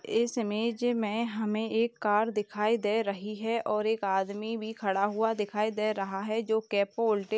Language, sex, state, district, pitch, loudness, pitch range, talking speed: Hindi, female, Uttar Pradesh, Jalaun, 215 Hz, -30 LUFS, 210-225 Hz, 185 wpm